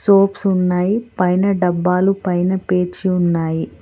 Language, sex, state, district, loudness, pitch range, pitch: Telugu, female, Telangana, Hyderabad, -17 LUFS, 180-195 Hz, 180 Hz